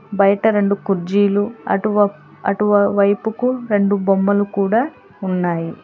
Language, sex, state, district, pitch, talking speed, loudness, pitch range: Telugu, female, Telangana, Hyderabad, 200 Hz, 90 wpm, -17 LUFS, 195-210 Hz